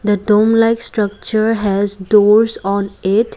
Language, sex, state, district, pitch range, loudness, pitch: English, female, Assam, Kamrup Metropolitan, 200-225 Hz, -14 LUFS, 210 Hz